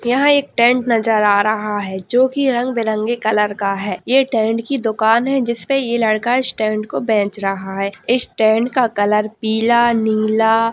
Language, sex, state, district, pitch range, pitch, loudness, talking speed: Hindi, female, Bihar, Jamui, 215-245 Hz, 225 Hz, -16 LUFS, 200 wpm